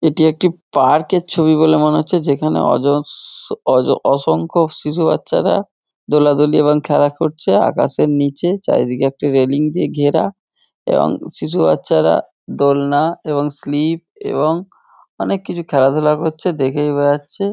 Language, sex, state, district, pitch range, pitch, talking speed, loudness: Bengali, male, West Bengal, Dakshin Dinajpur, 145-160 Hz, 150 Hz, 130 wpm, -15 LUFS